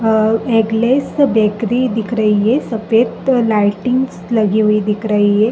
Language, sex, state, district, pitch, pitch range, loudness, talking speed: Hindi, female, Uttar Pradesh, Jalaun, 225 Hz, 210-235 Hz, -15 LUFS, 140 wpm